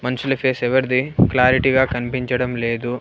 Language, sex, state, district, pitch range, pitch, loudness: Telugu, male, Andhra Pradesh, Annamaya, 125-130 Hz, 125 Hz, -18 LUFS